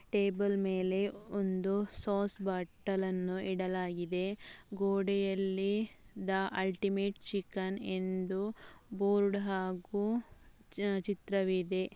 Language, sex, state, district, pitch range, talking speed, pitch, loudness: Kannada, female, Karnataka, Mysore, 190-200 Hz, 70 wpm, 195 Hz, -35 LUFS